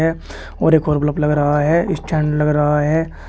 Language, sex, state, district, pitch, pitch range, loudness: Hindi, male, Uttar Pradesh, Shamli, 150 Hz, 150-160 Hz, -17 LUFS